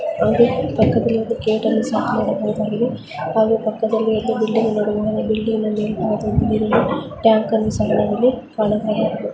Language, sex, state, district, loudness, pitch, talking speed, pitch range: Kannada, female, Karnataka, Mysore, -19 LUFS, 220 Hz, 135 wpm, 215-225 Hz